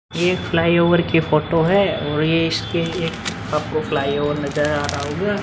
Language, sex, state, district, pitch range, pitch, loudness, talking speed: Hindi, male, Uttar Pradesh, Muzaffarnagar, 150-170 Hz, 165 Hz, -19 LUFS, 185 wpm